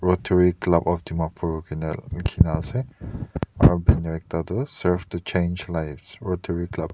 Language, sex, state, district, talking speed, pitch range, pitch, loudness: Nagamese, male, Nagaland, Dimapur, 155 wpm, 80-90 Hz, 85 Hz, -24 LUFS